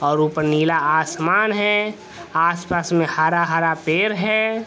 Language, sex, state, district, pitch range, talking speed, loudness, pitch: Hindi, male, Bihar, Vaishali, 160-210 Hz, 130 wpm, -19 LUFS, 170 Hz